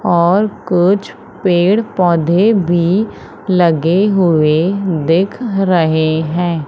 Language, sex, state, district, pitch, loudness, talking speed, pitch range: Hindi, female, Madhya Pradesh, Umaria, 175 Hz, -13 LUFS, 90 wpm, 170-195 Hz